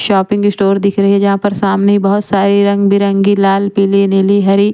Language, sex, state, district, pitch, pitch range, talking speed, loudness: Hindi, female, Chandigarh, Chandigarh, 200 Hz, 195-200 Hz, 190 wpm, -11 LUFS